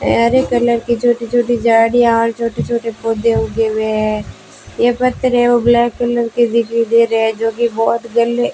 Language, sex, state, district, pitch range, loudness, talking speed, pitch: Hindi, female, Rajasthan, Bikaner, 230-240 Hz, -14 LUFS, 185 wpm, 235 Hz